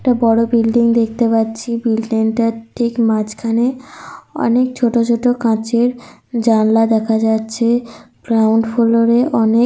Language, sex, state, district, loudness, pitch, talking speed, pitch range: Bengali, female, Jharkhand, Sahebganj, -15 LUFS, 230 Hz, 135 wpm, 225-235 Hz